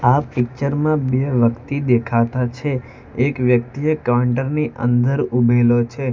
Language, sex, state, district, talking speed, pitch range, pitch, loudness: Gujarati, male, Gujarat, Valsad, 135 wpm, 120-140 Hz, 125 Hz, -18 LUFS